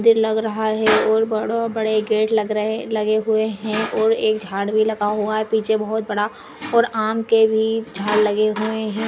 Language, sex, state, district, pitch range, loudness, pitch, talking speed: Hindi, female, Maharashtra, Dhule, 215-220 Hz, -19 LUFS, 220 Hz, 210 wpm